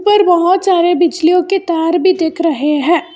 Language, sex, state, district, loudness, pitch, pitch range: Hindi, female, Karnataka, Bangalore, -12 LUFS, 345 Hz, 330-365 Hz